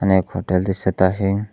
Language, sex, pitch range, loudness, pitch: Marathi, male, 95-100 Hz, -20 LUFS, 95 Hz